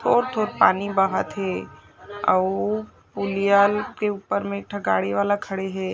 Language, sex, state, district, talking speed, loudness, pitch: Chhattisgarhi, female, Chhattisgarh, Jashpur, 160 wpm, -23 LUFS, 195 Hz